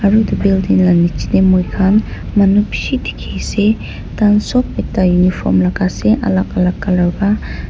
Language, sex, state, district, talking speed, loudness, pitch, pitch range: Nagamese, female, Nagaland, Dimapur, 170 wpm, -14 LUFS, 185 Hz, 175-205 Hz